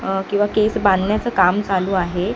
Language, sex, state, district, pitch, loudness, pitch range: Marathi, female, Maharashtra, Mumbai Suburban, 195 Hz, -18 LUFS, 190-210 Hz